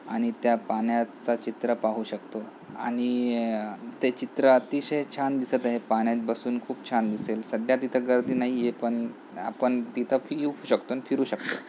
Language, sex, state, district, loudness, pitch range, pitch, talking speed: Marathi, male, Maharashtra, Pune, -27 LUFS, 115-130 Hz, 120 Hz, 150 wpm